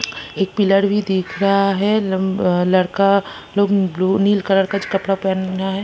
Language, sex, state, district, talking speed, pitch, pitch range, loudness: Hindi, female, Chhattisgarh, Kabirdham, 175 wpm, 195 Hz, 190-200 Hz, -17 LUFS